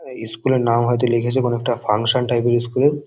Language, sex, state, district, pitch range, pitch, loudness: Bengali, male, West Bengal, Kolkata, 120-125 Hz, 120 Hz, -19 LUFS